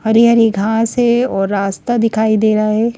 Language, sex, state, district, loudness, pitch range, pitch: Hindi, female, Madhya Pradesh, Bhopal, -14 LUFS, 215-235 Hz, 220 Hz